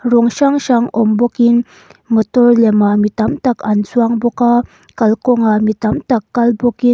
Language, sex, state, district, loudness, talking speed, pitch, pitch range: Mizo, female, Mizoram, Aizawl, -13 LUFS, 175 wpm, 235 Hz, 220-245 Hz